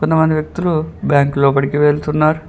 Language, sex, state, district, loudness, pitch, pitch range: Telugu, male, Telangana, Mahabubabad, -15 LUFS, 155 Hz, 145-155 Hz